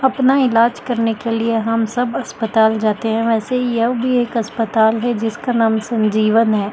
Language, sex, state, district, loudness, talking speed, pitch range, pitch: Hindi, female, Delhi, New Delhi, -17 LUFS, 195 wpm, 220-240 Hz, 230 Hz